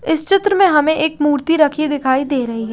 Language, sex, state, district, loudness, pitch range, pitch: Hindi, female, Haryana, Rohtak, -15 LUFS, 280-320 Hz, 305 Hz